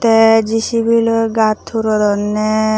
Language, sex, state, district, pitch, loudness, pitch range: Chakma, female, Tripura, Unakoti, 225 Hz, -14 LUFS, 215-225 Hz